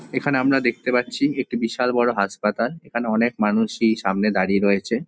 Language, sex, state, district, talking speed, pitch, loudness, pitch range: Bengali, male, West Bengal, Jhargram, 165 wpm, 115 Hz, -21 LUFS, 105-125 Hz